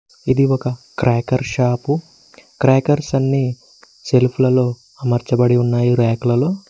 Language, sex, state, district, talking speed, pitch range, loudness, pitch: Telugu, male, Telangana, Mahabubabad, 90 wpm, 120-135 Hz, -17 LUFS, 130 Hz